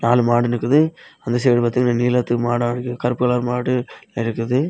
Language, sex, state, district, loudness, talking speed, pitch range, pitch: Tamil, male, Tamil Nadu, Kanyakumari, -19 LUFS, 165 wpm, 120-125 Hz, 120 Hz